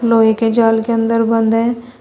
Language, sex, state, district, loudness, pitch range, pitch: Hindi, female, Uttar Pradesh, Shamli, -14 LUFS, 225-235 Hz, 230 Hz